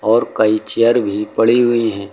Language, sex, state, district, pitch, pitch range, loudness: Hindi, male, Uttar Pradesh, Lucknow, 110 Hz, 105-115 Hz, -15 LUFS